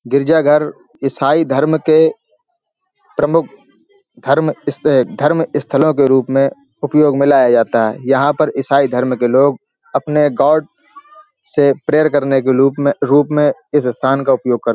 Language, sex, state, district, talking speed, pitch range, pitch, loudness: Hindi, male, Uttar Pradesh, Hamirpur, 160 wpm, 135-155 Hz, 145 Hz, -14 LUFS